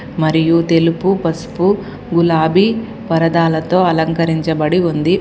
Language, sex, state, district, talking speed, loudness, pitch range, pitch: Telugu, female, Telangana, Komaram Bheem, 80 wpm, -15 LUFS, 160-185 Hz, 165 Hz